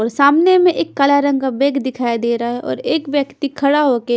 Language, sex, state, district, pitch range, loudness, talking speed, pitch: Hindi, female, Punjab, Pathankot, 245-285 Hz, -16 LUFS, 245 wpm, 275 Hz